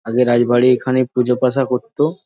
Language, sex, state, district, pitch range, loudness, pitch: Bengali, male, West Bengal, Jhargram, 120-130 Hz, -16 LUFS, 125 Hz